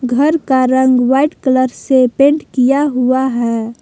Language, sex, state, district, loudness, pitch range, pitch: Hindi, female, Jharkhand, Palamu, -13 LUFS, 250-280 Hz, 260 Hz